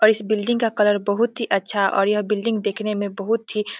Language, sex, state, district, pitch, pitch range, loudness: Hindi, female, Bihar, Muzaffarpur, 210 Hz, 205-225 Hz, -21 LUFS